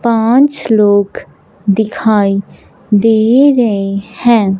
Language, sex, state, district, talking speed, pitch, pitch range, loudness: Hindi, female, Punjab, Fazilka, 80 wpm, 215 Hz, 200-235 Hz, -11 LUFS